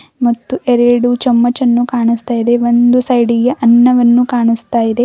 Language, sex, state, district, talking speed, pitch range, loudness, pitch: Kannada, female, Karnataka, Bidar, 140 wpm, 235-245 Hz, -12 LUFS, 240 Hz